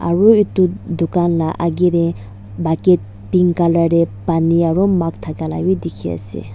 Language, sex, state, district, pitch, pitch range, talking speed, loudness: Nagamese, female, Nagaland, Dimapur, 170 Hz, 160-175 Hz, 165 wpm, -16 LUFS